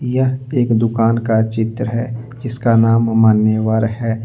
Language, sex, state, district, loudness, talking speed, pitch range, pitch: Hindi, male, Jharkhand, Deoghar, -16 LUFS, 140 wpm, 110-120 Hz, 115 Hz